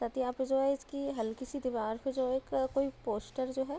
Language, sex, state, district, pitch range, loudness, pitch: Hindi, female, Uttar Pradesh, Deoria, 250-275 Hz, -34 LUFS, 260 Hz